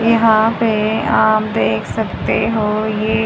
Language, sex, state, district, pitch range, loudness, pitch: Hindi, female, Haryana, Jhajjar, 215-225 Hz, -15 LUFS, 220 Hz